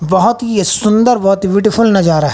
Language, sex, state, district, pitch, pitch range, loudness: Hindi, female, Haryana, Jhajjar, 200 Hz, 185-225 Hz, -11 LUFS